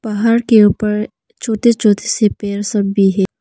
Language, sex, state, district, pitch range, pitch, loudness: Hindi, female, Arunachal Pradesh, Papum Pare, 205-225 Hz, 210 Hz, -14 LUFS